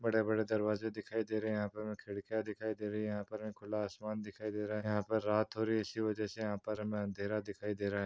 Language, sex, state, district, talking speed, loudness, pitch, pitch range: Hindi, male, Maharashtra, Dhule, 270 wpm, -38 LUFS, 105 Hz, 105-110 Hz